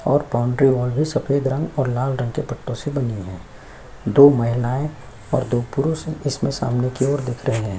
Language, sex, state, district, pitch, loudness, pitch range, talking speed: Hindi, male, Chhattisgarh, Sukma, 130 Hz, -20 LUFS, 120-145 Hz, 215 wpm